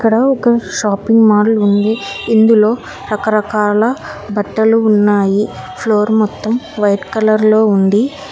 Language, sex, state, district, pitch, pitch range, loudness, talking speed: Telugu, female, Telangana, Hyderabad, 215 Hz, 205-225 Hz, -13 LUFS, 110 wpm